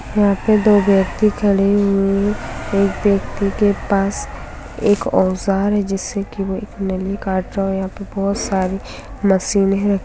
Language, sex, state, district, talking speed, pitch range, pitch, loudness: Hindi, female, Bihar, Samastipur, 165 wpm, 195-205 Hz, 200 Hz, -18 LUFS